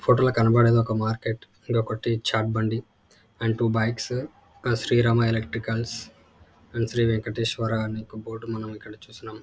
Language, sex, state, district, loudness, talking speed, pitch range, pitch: Telugu, male, Andhra Pradesh, Anantapur, -25 LUFS, 155 wpm, 110-115 Hz, 115 Hz